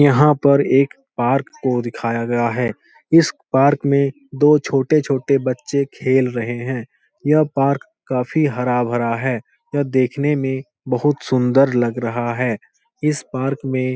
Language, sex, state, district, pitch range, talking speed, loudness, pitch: Hindi, male, Bihar, Supaul, 125-140 Hz, 145 wpm, -18 LUFS, 130 Hz